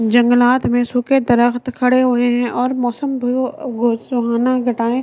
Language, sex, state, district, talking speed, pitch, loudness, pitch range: Hindi, female, Delhi, New Delhi, 130 wpm, 245 Hz, -16 LUFS, 240-255 Hz